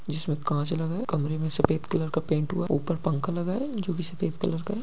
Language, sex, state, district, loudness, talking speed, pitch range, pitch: Hindi, male, Jharkhand, Jamtara, -28 LUFS, 300 wpm, 155-185 Hz, 165 Hz